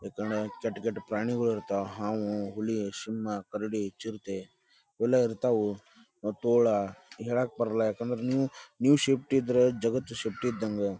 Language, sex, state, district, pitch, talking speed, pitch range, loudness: Kannada, male, Karnataka, Dharwad, 110 Hz, 125 wpm, 105-120 Hz, -30 LUFS